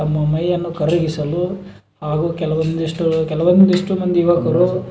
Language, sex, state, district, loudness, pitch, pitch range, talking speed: Kannada, male, Karnataka, Belgaum, -17 LUFS, 165 Hz, 155-175 Hz, 100 wpm